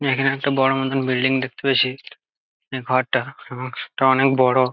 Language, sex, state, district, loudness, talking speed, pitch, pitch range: Bengali, male, West Bengal, Jalpaiguri, -20 LUFS, 140 wpm, 130 Hz, 130-135 Hz